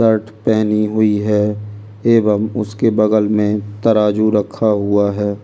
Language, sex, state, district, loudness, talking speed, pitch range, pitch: Hindi, male, Delhi, New Delhi, -15 LUFS, 135 wpm, 105-110 Hz, 105 Hz